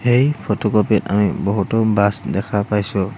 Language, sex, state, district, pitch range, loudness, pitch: Assamese, male, Assam, Hailakandi, 100-110 Hz, -18 LUFS, 105 Hz